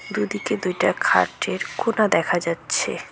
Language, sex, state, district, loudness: Bengali, female, West Bengal, Cooch Behar, -22 LUFS